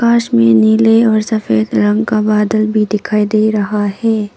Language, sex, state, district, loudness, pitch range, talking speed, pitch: Hindi, female, Arunachal Pradesh, Papum Pare, -12 LUFS, 200-220 Hz, 180 wpm, 215 Hz